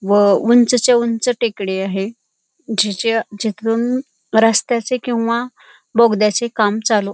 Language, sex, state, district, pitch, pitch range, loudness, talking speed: Marathi, female, Maharashtra, Pune, 225 Hz, 210-240 Hz, -16 LUFS, 110 wpm